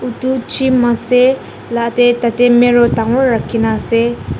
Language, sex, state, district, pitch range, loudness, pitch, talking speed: Nagamese, female, Nagaland, Dimapur, 235-250 Hz, -13 LUFS, 240 Hz, 135 wpm